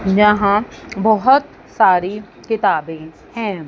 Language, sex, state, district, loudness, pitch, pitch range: Hindi, female, Chandigarh, Chandigarh, -16 LUFS, 205 Hz, 185-220 Hz